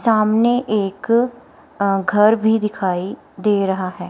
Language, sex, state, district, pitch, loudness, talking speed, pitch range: Hindi, female, Himachal Pradesh, Shimla, 210 Hz, -18 LUFS, 130 wpm, 195-225 Hz